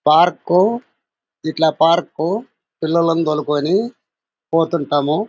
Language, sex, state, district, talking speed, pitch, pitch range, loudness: Telugu, male, Andhra Pradesh, Anantapur, 70 wpm, 165 Hz, 155-180 Hz, -17 LUFS